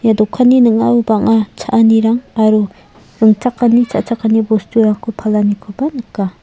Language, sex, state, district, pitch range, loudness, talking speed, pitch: Garo, female, Meghalaya, South Garo Hills, 215-235 Hz, -13 LUFS, 105 wpm, 225 Hz